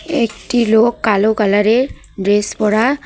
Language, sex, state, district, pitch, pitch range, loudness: Bengali, female, West Bengal, Cooch Behar, 220 Hz, 210-240 Hz, -15 LUFS